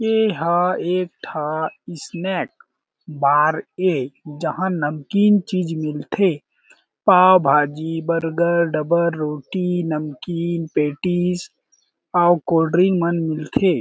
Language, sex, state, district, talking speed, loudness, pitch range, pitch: Chhattisgarhi, male, Chhattisgarh, Jashpur, 95 wpm, -20 LUFS, 155-180 Hz, 170 Hz